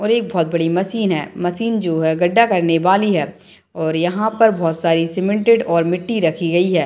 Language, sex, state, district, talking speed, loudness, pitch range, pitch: Hindi, female, Bihar, Madhepura, 210 wpm, -17 LUFS, 165-215 Hz, 175 Hz